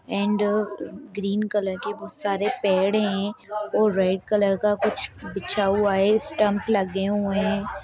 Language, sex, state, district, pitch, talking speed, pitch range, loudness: Hindi, female, Bihar, Sitamarhi, 205 Hz, 155 wpm, 200-210 Hz, -23 LUFS